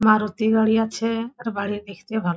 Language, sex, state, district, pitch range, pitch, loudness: Bengali, female, West Bengal, Jhargram, 205-225 Hz, 220 Hz, -22 LUFS